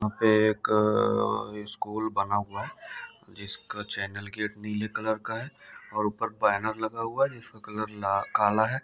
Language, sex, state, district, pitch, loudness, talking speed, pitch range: Hindi, male, Rajasthan, Nagaur, 105 Hz, -28 LUFS, 150 wpm, 105-110 Hz